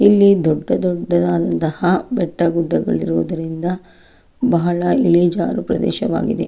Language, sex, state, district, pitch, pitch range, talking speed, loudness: Kannada, female, Karnataka, Chamarajanagar, 170 Hz, 155-180 Hz, 85 wpm, -17 LUFS